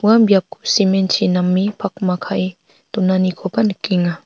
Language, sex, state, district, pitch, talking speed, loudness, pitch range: Garo, female, Meghalaya, North Garo Hills, 190 Hz, 100 wpm, -17 LUFS, 180-200 Hz